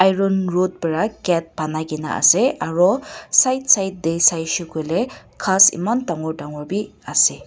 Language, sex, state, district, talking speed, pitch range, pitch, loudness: Nagamese, female, Nagaland, Dimapur, 145 wpm, 160-205 Hz, 180 Hz, -18 LUFS